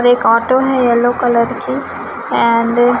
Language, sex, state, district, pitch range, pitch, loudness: Hindi, male, Chhattisgarh, Raipur, 235-245 Hz, 245 Hz, -13 LUFS